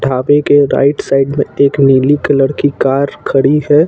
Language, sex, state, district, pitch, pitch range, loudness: Hindi, male, Jharkhand, Ranchi, 140 Hz, 135-145 Hz, -11 LUFS